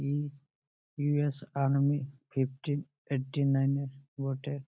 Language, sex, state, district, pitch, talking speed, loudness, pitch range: Bengali, male, West Bengal, Malda, 140 Hz, 130 wpm, -32 LUFS, 135-145 Hz